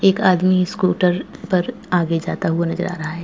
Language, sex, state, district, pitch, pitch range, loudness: Hindi, female, Goa, North and South Goa, 180 Hz, 170-185 Hz, -19 LUFS